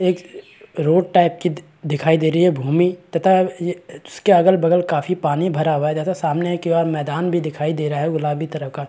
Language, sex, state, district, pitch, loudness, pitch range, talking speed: Hindi, male, Chhattisgarh, Rajnandgaon, 165 Hz, -19 LUFS, 155-180 Hz, 245 wpm